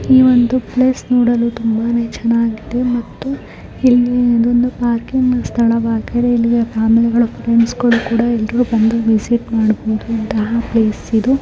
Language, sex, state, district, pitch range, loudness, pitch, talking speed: Kannada, female, Karnataka, Shimoga, 230-245 Hz, -15 LUFS, 235 Hz, 30 wpm